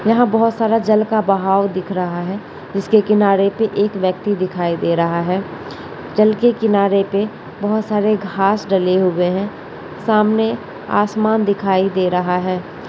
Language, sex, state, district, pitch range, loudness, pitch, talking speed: Hindi, female, Bihar, Purnia, 185-215 Hz, -17 LUFS, 200 Hz, 170 wpm